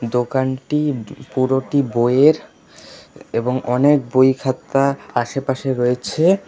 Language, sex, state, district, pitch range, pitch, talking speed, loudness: Bengali, male, West Bengal, Alipurduar, 125-140 Hz, 130 Hz, 85 wpm, -18 LUFS